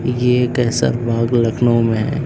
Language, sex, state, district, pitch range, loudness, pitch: Hindi, female, Uttar Pradesh, Lucknow, 115-125 Hz, -16 LUFS, 120 Hz